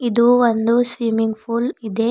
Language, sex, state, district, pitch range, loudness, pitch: Kannada, female, Karnataka, Bidar, 225-240 Hz, -18 LUFS, 235 Hz